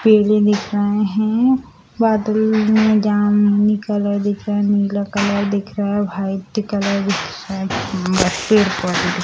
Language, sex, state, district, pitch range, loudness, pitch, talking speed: Hindi, female, Bihar, Samastipur, 200-215 Hz, -17 LUFS, 205 Hz, 130 wpm